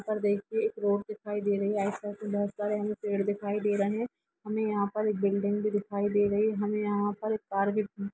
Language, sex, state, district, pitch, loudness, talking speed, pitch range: Hindi, female, Jharkhand, Sahebganj, 205 Hz, -30 LUFS, 250 wpm, 205-210 Hz